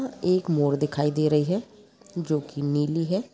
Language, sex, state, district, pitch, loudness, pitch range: Hindi, female, Goa, North and South Goa, 155 Hz, -25 LUFS, 150-185 Hz